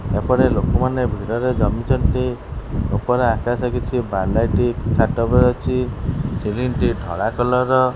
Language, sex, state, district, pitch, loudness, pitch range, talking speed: Odia, male, Odisha, Khordha, 120 Hz, -19 LUFS, 105-125 Hz, 130 wpm